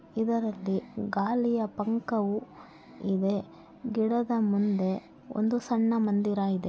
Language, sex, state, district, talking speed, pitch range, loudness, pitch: Kannada, female, Karnataka, Bellary, 90 wpm, 200-230 Hz, -29 LUFS, 215 Hz